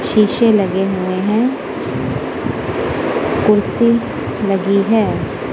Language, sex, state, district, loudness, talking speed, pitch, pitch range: Hindi, female, Punjab, Kapurthala, -16 LUFS, 75 wpm, 205 Hz, 190-220 Hz